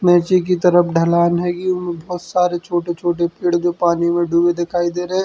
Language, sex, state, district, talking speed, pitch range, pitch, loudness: Bundeli, male, Uttar Pradesh, Hamirpur, 195 wpm, 170-180 Hz, 175 Hz, -17 LUFS